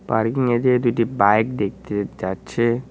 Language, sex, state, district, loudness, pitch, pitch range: Bengali, male, West Bengal, Cooch Behar, -20 LUFS, 115 Hz, 100-120 Hz